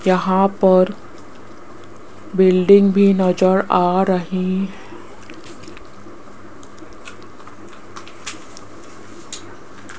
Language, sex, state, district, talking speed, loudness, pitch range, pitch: Hindi, female, Rajasthan, Jaipur, 50 wpm, -16 LUFS, 185-195 Hz, 190 Hz